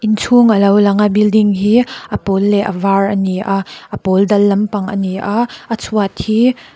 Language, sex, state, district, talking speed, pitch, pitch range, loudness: Mizo, female, Mizoram, Aizawl, 195 wpm, 205 Hz, 195-215 Hz, -14 LUFS